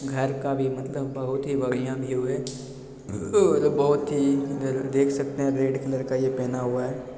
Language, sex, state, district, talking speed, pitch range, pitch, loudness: Hindi, male, Bihar, Jamui, 185 wpm, 130-140 Hz, 135 Hz, -25 LUFS